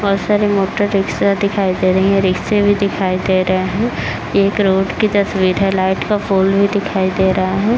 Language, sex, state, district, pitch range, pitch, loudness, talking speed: Hindi, female, Uttar Pradesh, Varanasi, 190-200 Hz, 195 Hz, -15 LUFS, 215 wpm